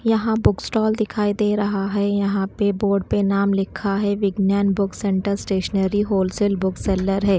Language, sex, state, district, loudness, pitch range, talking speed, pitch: Hindi, female, Haryana, Charkhi Dadri, -21 LUFS, 195-205 Hz, 180 wpm, 200 Hz